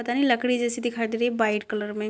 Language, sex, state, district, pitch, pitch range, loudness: Hindi, female, Bihar, Muzaffarpur, 235 Hz, 215-240 Hz, -25 LUFS